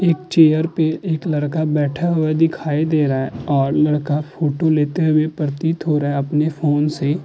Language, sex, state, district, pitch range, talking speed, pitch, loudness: Hindi, male, Uttar Pradesh, Muzaffarnagar, 145-160 Hz, 190 wpm, 155 Hz, -18 LUFS